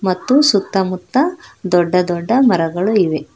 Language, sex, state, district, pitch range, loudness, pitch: Kannada, female, Karnataka, Bangalore, 175-240 Hz, -15 LUFS, 185 Hz